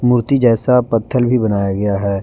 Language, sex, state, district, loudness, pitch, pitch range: Hindi, male, Jharkhand, Garhwa, -15 LUFS, 115 Hz, 100-125 Hz